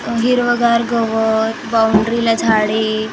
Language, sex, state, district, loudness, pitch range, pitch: Marathi, female, Maharashtra, Gondia, -15 LUFS, 220-235 Hz, 225 Hz